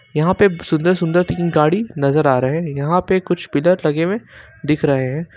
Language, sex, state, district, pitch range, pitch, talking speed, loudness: Hindi, male, Jharkhand, Ranchi, 145-180 Hz, 160 Hz, 210 wpm, -17 LUFS